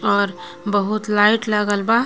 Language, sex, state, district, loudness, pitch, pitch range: Bhojpuri, female, Jharkhand, Palamu, -18 LUFS, 205 Hz, 200-215 Hz